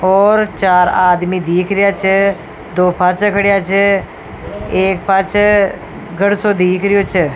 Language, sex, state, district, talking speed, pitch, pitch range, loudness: Rajasthani, female, Rajasthan, Nagaur, 140 wpm, 190 Hz, 180-200 Hz, -13 LUFS